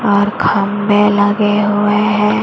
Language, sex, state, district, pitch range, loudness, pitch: Hindi, female, Maharashtra, Mumbai Suburban, 205-210 Hz, -13 LUFS, 205 Hz